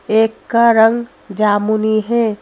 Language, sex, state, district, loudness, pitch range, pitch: Hindi, female, Madhya Pradesh, Bhopal, -14 LUFS, 215-230 Hz, 220 Hz